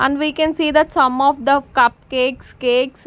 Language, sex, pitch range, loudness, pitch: English, female, 255-310 Hz, -17 LUFS, 275 Hz